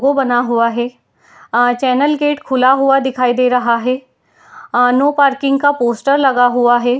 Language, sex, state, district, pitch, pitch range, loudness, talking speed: Hindi, female, Uttar Pradesh, Jalaun, 255 Hz, 245-275 Hz, -14 LUFS, 180 wpm